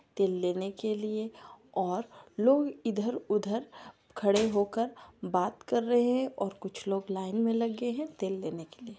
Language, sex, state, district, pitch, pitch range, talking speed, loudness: Hindi, female, Chhattisgarh, Sarguja, 215 Hz, 195-235 Hz, 165 wpm, -31 LUFS